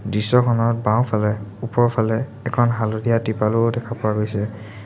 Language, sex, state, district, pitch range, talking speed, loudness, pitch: Assamese, male, Assam, Sonitpur, 105-120 Hz, 110 wpm, -20 LUFS, 110 Hz